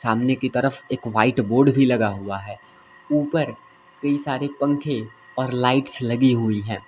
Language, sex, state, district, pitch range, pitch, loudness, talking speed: Hindi, male, Uttar Pradesh, Lalitpur, 110-140 Hz, 130 Hz, -22 LUFS, 165 wpm